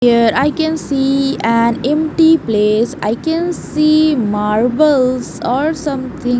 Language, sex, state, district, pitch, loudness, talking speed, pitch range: English, female, Haryana, Jhajjar, 270 Hz, -14 LUFS, 120 wpm, 235-305 Hz